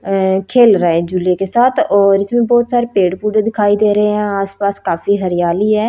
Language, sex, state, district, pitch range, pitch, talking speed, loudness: Hindi, female, Chhattisgarh, Raipur, 190-215 Hz, 200 Hz, 225 wpm, -13 LUFS